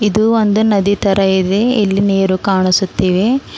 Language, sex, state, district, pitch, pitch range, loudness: Kannada, female, Karnataka, Bidar, 200 Hz, 190-215 Hz, -13 LUFS